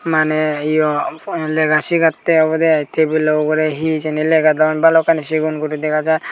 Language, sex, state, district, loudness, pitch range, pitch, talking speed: Chakma, male, Tripura, Dhalai, -16 LUFS, 155-160 Hz, 155 Hz, 160 wpm